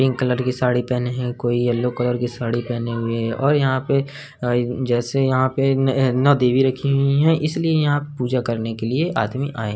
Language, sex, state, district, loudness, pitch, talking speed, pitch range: Hindi, male, Uttar Pradesh, Hamirpur, -20 LUFS, 125 Hz, 215 wpm, 120-140 Hz